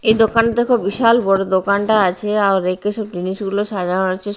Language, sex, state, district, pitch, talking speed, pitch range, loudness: Bengali, female, Odisha, Nuapada, 205 Hz, 180 wpm, 190-220 Hz, -17 LUFS